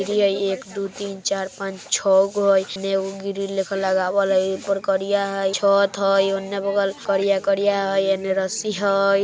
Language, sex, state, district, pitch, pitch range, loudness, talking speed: Maithili, male, Bihar, Vaishali, 195 Hz, 195-200 Hz, -21 LUFS, 175 wpm